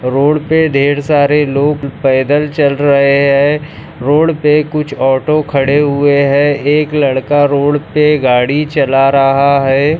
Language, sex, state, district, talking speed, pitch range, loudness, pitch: Hindi, male, Bihar, Muzaffarpur, 145 wpm, 140-150 Hz, -11 LUFS, 145 Hz